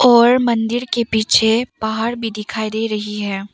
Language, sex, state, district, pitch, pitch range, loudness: Hindi, female, Arunachal Pradesh, Papum Pare, 225 Hz, 215-235 Hz, -17 LUFS